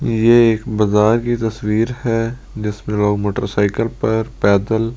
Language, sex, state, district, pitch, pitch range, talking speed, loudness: Hindi, male, Delhi, New Delhi, 110 Hz, 105-115 Hz, 135 wpm, -17 LUFS